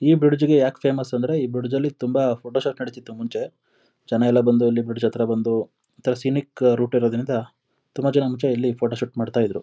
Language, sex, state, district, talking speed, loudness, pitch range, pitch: Kannada, male, Karnataka, Mysore, 200 wpm, -22 LUFS, 120-135 Hz, 125 Hz